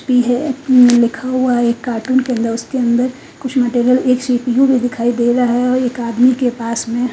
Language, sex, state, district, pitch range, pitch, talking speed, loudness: Hindi, female, Bihar, Katihar, 240-255 Hz, 245 Hz, 235 wpm, -15 LUFS